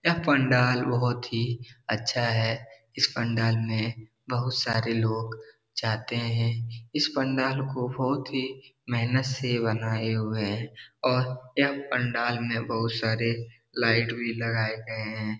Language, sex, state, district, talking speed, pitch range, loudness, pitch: Hindi, male, Bihar, Darbhanga, 135 wpm, 115-125 Hz, -27 LUFS, 115 Hz